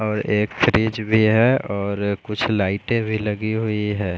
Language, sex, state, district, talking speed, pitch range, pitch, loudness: Hindi, male, Odisha, Khordha, 170 wpm, 105-110 Hz, 105 Hz, -20 LUFS